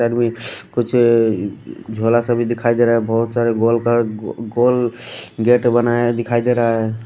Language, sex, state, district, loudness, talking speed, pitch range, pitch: Hindi, male, Delhi, New Delhi, -17 LUFS, 180 wpm, 115-120 Hz, 120 Hz